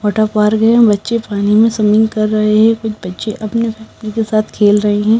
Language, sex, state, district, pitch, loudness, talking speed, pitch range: Hindi, female, Punjab, Kapurthala, 215 Hz, -13 LUFS, 205 wpm, 210-220 Hz